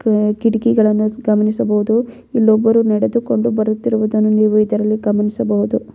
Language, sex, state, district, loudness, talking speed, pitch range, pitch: Kannada, female, Karnataka, Bellary, -15 LUFS, 90 wpm, 215-225 Hz, 215 Hz